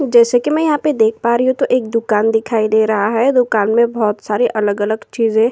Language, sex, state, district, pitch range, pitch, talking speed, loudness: Hindi, female, Uttar Pradesh, Jyotiba Phule Nagar, 220-245 Hz, 225 Hz, 250 wpm, -15 LUFS